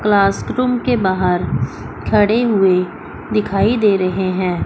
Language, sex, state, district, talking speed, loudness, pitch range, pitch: Hindi, female, Chandigarh, Chandigarh, 130 wpm, -16 LUFS, 185-215 Hz, 200 Hz